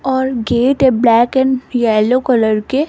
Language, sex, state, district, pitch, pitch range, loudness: Hindi, female, Rajasthan, Jaipur, 250 Hz, 230-265 Hz, -13 LUFS